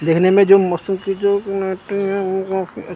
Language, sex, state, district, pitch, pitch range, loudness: Hindi, male, Chandigarh, Chandigarh, 195 Hz, 190-195 Hz, -17 LUFS